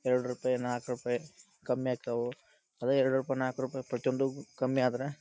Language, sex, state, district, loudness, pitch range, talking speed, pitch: Kannada, male, Karnataka, Dharwad, -33 LUFS, 125-130 Hz, 170 wpm, 130 Hz